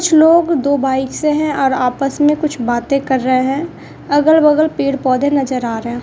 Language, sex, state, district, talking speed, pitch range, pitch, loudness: Hindi, female, Bihar, Kaimur, 200 wpm, 260-300 Hz, 275 Hz, -14 LUFS